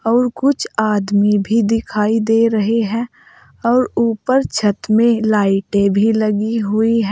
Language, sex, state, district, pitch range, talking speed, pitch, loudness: Hindi, female, Uttar Pradesh, Saharanpur, 210-230 Hz, 145 wpm, 220 Hz, -16 LUFS